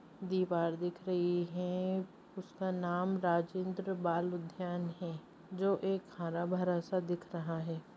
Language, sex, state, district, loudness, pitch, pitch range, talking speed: Hindi, male, Bihar, Purnia, -36 LUFS, 180 Hz, 170-185 Hz, 130 wpm